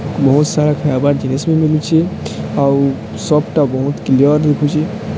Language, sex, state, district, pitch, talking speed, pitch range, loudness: Odia, male, Odisha, Sambalpur, 145 Hz, 125 wpm, 140-155 Hz, -14 LUFS